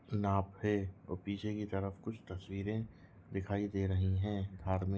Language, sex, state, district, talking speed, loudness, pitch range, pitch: Hindi, male, Chhattisgarh, Rajnandgaon, 155 wpm, -38 LUFS, 95-105 Hz, 100 Hz